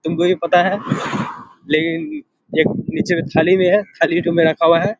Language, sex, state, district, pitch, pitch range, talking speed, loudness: Hindi, male, Bihar, Kishanganj, 175 Hz, 165-205 Hz, 190 wpm, -17 LUFS